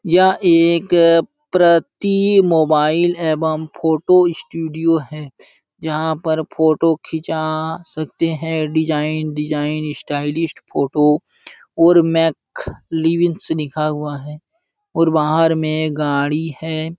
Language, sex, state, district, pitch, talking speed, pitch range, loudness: Hindi, male, Uttar Pradesh, Jalaun, 160 Hz, 105 wpm, 155-165 Hz, -17 LUFS